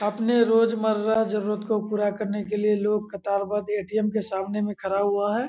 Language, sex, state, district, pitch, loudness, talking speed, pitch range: Hindi, male, Bihar, Kishanganj, 210 Hz, -25 LUFS, 185 wpm, 205-215 Hz